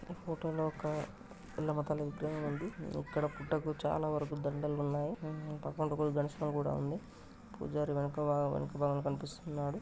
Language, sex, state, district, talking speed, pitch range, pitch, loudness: Telugu, male, Telangana, Nalgonda, 105 wpm, 145-155 Hz, 150 Hz, -37 LUFS